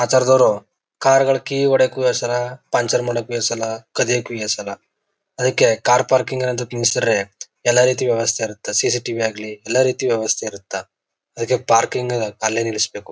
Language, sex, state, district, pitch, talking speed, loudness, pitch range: Kannada, male, Karnataka, Chamarajanagar, 120 Hz, 135 wpm, -18 LUFS, 110-125 Hz